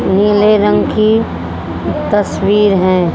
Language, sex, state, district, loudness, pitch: Hindi, female, Haryana, Jhajjar, -12 LUFS, 200 Hz